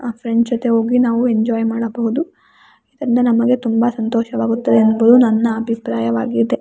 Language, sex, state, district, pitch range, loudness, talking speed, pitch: Kannada, female, Karnataka, Raichur, 220-240 Hz, -16 LUFS, 125 wpm, 230 Hz